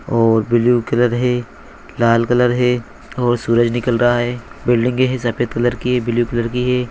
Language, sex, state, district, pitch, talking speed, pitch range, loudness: Hindi, male, Chhattisgarh, Bilaspur, 120 Hz, 180 wpm, 120-125 Hz, -17 LUFS